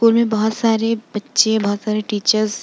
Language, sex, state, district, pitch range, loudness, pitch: Hindi, female, Bihar, Vaishali, 215-225 Hz, -18 LUFS, 215 Hz